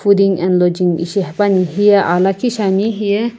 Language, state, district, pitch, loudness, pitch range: Sumi, Nagaland, Kohima, 195 Hz, -14 LUFS, 180-205 Hz